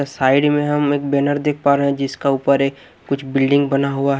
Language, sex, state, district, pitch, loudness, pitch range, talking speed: Hindi, male, Haryana, Jhajjar, 140 Hz, -17 LUFS, 135-145 Hz, 255 wpm